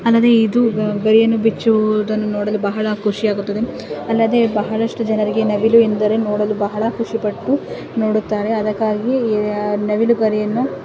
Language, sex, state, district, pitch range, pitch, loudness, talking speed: Kannada, female, Karnataka, Mysore, 210-225 Hz, 215 Hz, -17 LUFS, 105 wpm